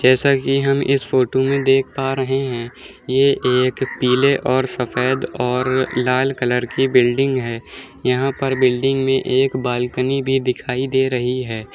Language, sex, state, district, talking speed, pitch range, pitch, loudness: Hindi, male, Uttar Pradesh, Muzaffarnagar, 165 wpm, 125-135 Hz, 130 Hz, -18 LUFS